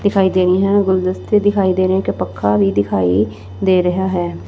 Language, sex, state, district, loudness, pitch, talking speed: Punjabi, female, Punjab, Fazilka, -16 LUFS, 180 Hz, 200 wpm